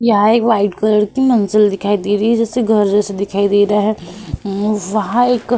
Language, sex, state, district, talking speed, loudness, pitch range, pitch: Hindi, female, Uttar Pradesh, Hamirpur, 225 wpm, -14 LUFS, 200-225 Hz, 210 Hz